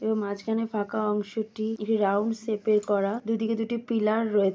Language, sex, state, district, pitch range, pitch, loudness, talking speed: Bengali, female, West Bengal, Jalpaiguri, 210-225 Hz, 220 Hz, -27 LUFS, 185 wpm